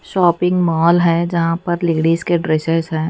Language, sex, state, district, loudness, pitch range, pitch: Hindi, female, Chandigarh, Chandigarh, -16 LUFS, 165-175 Hz, 170 Hz